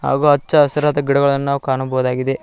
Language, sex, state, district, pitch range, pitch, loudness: Kannada, male, Karnataka, Koppal, 130-145 Hz, 140 Hz, -16 LUFS